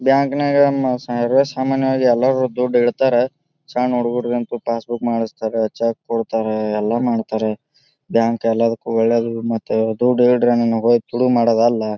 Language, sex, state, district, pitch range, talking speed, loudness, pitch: Kannada, male, Karnataka, Bijapur, 115-130 Hz, 145 wpm, -18 LUFS, 120 Hz